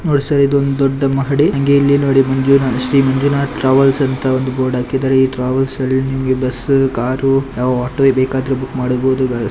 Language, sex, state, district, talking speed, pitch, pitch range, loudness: Kannada, male, Karnataka, Shimoga, 170 wpm, 135 Hz, 130-135 Hz, -15 LUFS